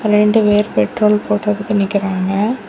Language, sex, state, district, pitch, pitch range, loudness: Tamil, female, Tamil Nadu, Kanyakumari, 210 Hz, 200-210 Hz, -15 LUFS